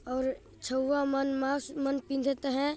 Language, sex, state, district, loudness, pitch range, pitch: Sadri, male, Chhattisgarh, Jashpur, -31 LUFS, 270-280 Hz, 275 Hz